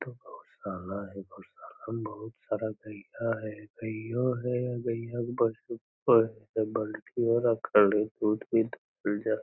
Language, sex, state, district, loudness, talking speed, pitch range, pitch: Magahi, male, Bihar, Lakhisarai, -30 LUFS, 95 wpm, 105-115 Hz, 110 Hz